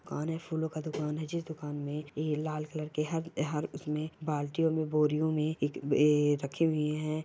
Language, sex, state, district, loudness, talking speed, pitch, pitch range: Hindi, female, Bihar, Bhagalpur, -32 LUFS, 205 wpm, 155 Hz, 150-160 Hz